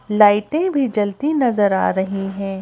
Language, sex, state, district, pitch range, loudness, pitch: Hindi, female, Madhya Pradesh, Bhopal, 195-265 Hz, -18 LUFS, 210 Hz